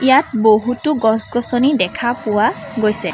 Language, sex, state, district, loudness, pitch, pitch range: Assamese, female, Assam, Sonitpur, -15 LUFS, 240 Hz, 215-260 Hz